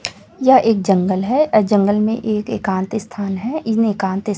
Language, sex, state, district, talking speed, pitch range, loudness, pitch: Hindi, female, Chhattisgarh, Raipur, 190 wpm, 195-225 Hz, -17 LUFS, 215 Hz